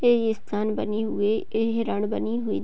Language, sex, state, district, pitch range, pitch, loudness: Hindi, female, Bihar, Gopalganj, 210-230 Hz, 220 Hz, -25 LUFS